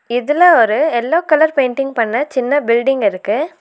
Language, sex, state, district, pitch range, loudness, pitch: Tamil, female, Tamil Nadu, Nilgiris, 235-310 Hz, -14 LUFS, 270 Hz